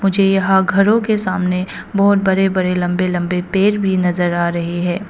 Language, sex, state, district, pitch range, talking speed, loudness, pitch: Hindi, female, Arunachal Pradesh, Papum Pare, 180-195 Hz, 190 wpm, -16 LUFS, 185 Hz